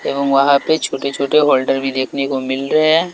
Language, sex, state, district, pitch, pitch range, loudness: Hindi, male, Bihar, West Champaran, 140 Hz, 135-150 Hz, -16 LUFS